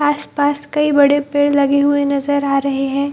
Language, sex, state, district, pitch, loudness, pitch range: Hindi, female, Bihar, Gaya, 285 Hz, -15 LUFS, 280-290 Hz